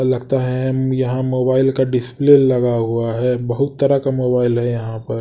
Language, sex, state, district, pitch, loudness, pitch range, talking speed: Hindi, male, Odisha, Sambalpur, 130 Hz, -17 LUFS, 120-130 Hz, 185 wpm